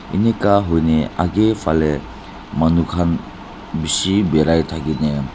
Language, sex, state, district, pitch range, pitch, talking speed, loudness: Nagamese, male, Nagaland, Dimapur, 80-95 Hz, 80 Hz, 100 wpm, -18 LUFS